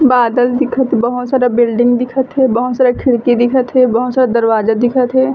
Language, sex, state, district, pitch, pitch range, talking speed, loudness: Chhattisgarhi, female, Chhattisgarh, Bilaspur, 250 Hz, 240-260 Hz, 190 wpm, -13 LUFS